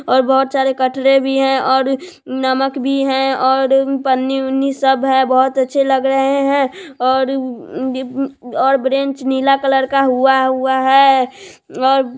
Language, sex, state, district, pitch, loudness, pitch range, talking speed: Hindi, female, Bihar, Sitamarhi, 265 Hz, -15 LUFS, 265-270 Hz, 145 wpm